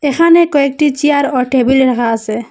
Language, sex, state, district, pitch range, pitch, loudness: Bengali, female, Assam, Hailakandi, 250-295 Hz, 270 Hz, -12 LUFS